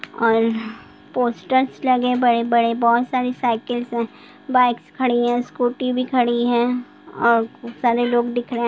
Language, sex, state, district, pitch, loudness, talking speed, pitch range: Hindi, female, Bihar, Sitamarhi, 240 Hz, -20 LUFS, 160 wpm, 235-250 Hz